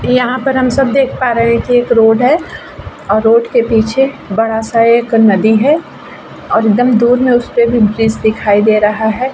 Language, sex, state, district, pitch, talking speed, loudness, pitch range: Hindi, female, Bihar, Vaishali, 235 Hz, 210 wpm, -11 LUFS, 220-250 Hz